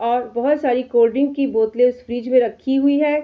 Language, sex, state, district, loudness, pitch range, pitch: Hindi, female, Bihar, Araria, -18 LUFS, 240-275 Hz, 250 Hz